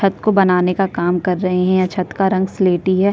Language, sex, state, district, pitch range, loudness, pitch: Hindi, female, Chhattisgarh, Sukma, 180-195 Hz, -16 LUFS, 185 Hz